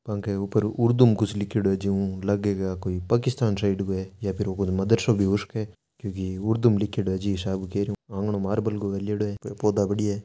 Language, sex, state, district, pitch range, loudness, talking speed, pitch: Marwari, male, Rajasthan, Nagaur, 100-105 Hz, -25 LUFS, 250 wpm, 100 Hz